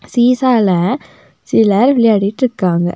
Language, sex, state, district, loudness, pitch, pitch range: Tamil, female, Tamil Nadu, Nilgiris, -13 LUFS, 225 Hz, 195-250 Hz